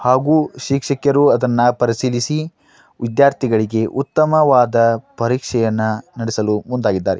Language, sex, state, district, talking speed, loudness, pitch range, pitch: Kannada, male, Karnataka, Dharwad, 75 wpm, -16 LUFS, 115-140 Hz, 125 Hz